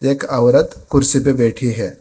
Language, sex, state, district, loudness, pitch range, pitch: Hindi, female, Telangana, Hyderabad, -15 LUFS, 120-140 Hz, 135 Hz